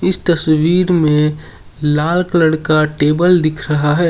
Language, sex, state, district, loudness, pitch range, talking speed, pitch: Hindi, male, Assam, Sonitpur, -14 LUFS, 150-175 Hz, 145 wpm, 155 Hz